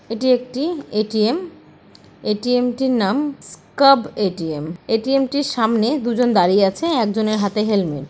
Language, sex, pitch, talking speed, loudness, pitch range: Awadhi, female, 230 Hz, 150 wpm, -19 LUFS, 210-270 Hz